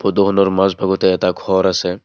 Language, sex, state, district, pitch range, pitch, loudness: Assamese, male, Assam, Kamrup Metropolitan, 95-100 Hz, 95 Hz, -15 LUFS